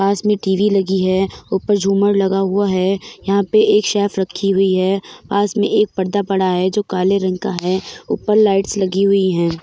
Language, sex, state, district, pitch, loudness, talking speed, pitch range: Hindi, female, Uttar Pradesh, Jyotiba Phule Nagar, 195 Hz, -16 LUFS, 205 wpm, 190-205 Hz